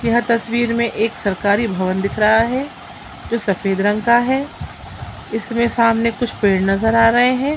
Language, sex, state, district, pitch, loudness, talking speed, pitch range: Hindi, female, Bihar, Gaya, 230 Hz, -17 LUFS, 175 wpm, 205-235 Hz